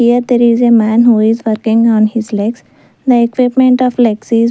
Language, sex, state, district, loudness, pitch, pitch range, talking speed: English, female, Punjab, Fazilka, -11 LUFS, 235 Hz, 225-245 Hz, 240 wpm